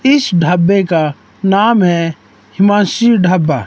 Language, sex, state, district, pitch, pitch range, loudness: Hindi, male, Himachal Pradesh, Shimla, 180 Hz, 160-200 Hz, -12 LUFS